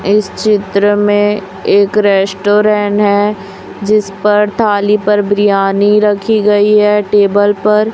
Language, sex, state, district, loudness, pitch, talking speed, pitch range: Hindi, female, Chhattisgarh, Raipur, -11 LUFS, 205 Hz, 120 wpm, 205-210 Hz